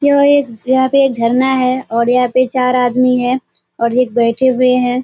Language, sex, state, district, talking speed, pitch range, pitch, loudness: Hindi, female, Bihar, Kishanganj, 215 wpm, 245-260 Hz, 255 Hz, -13 LUFS